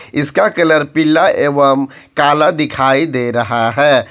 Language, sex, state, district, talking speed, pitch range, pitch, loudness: Hindi, male, Jharkhand, Ranchi, 130 wpm, 135-155 Hz, 145 Hz, -13 LUFS